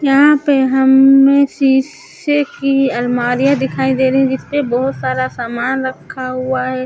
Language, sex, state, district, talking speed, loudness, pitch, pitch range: Hindi, female, Chhattisgarh, Raipur, 150 wpm, -14 LUFS, 265 Hz, 255-275 Hz